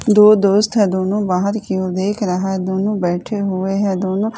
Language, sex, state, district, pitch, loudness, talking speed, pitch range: Hindi, female, Chhattisgarh, Raipur, 195 Hz, -17 LUFS, 205 wpm, 190-210 Hz